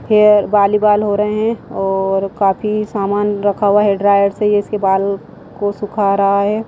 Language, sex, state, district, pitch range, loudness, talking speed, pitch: Hindi, female, Himachal Pradesh, Shimla, 200-210 Hz, -15 LUFS, 190 wpm, 205 Hz